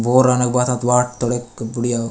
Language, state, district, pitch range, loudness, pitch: Gondi, Chhattisgarh, Sukma, 120-125 Hz, -18 LUFS, 125 Hz